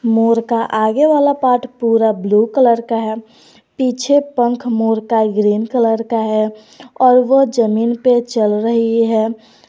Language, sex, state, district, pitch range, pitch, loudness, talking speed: Hindi, female, Jharkhand, Garhwa, 220-250 Hz, 230 Hz, -15 LUFS, 155 wpm